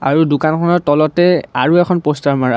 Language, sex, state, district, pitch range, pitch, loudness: Assamese, male, Assam, Kamrup Metropolitan, 145-175 Hz, 155 Hz, -14 LUFS